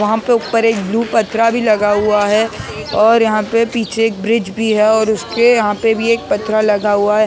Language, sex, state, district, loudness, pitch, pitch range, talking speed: Hindi, male, Maharashtra, Mumbai Suburban, -14 LUFS, 220 Hz, 210-230 Hz, 240 wpm